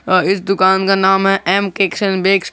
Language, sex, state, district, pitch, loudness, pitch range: Hindi, male, Jharkhand, Garhwa, 195 Hz, -14 LUFS, 190-195 Hz